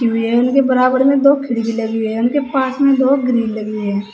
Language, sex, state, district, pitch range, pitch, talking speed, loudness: Hindi, female, Uttar Pradesh, Saharanpur, 225-270 Hz, 245 Hz, 275 wpm, -15 LUFS